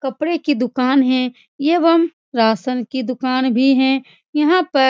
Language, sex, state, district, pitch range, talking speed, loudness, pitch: Hindi, female, Bihar, Supaul, 255-300 Hz, 160 wpm, -17 LUFS, 265 Hz